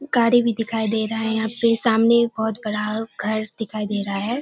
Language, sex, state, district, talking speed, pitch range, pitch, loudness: Hindi, female, Bihar, Kishanganj, 215 wpm, 215-230 Hz, 220 Hz, -21 LUFS